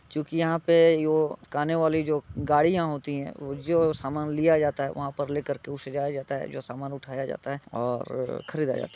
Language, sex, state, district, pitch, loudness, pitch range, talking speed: Hindi, male, Bihar, Muzaffarpur, 145 Hz, -27 LUFS, 140-155 Hz, 220 wpm